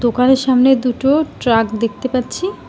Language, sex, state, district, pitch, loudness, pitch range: Bengali, female, West Bengal, Alipurduar, 255 Hz, -15 LUFS, 240-265 Hz